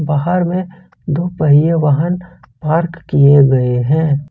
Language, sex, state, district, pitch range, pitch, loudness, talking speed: Hindi, male, Jharkhand, Ranchi, 145-175 Hz, 155 Hz, -14 LUFS, 125 wpm